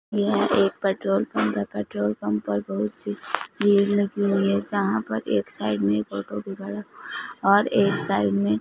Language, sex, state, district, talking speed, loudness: Hindi, female, Punjab, Fazilka, 160 wpm, -24 LUFS